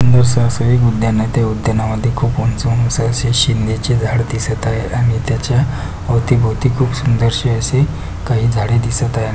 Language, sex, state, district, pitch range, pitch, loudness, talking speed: Marathi, male, Maharashtra, Pune, 115-125 Hz, 120 Hz, -15 LUFS, 160 wpm